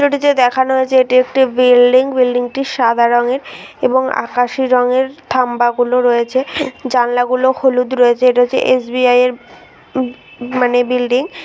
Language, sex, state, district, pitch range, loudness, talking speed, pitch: Bengali, female, West Bengal, Dakshin Dinajpur, 245-260 Hz, -14 LUFS, 130 wpm, 255 Hz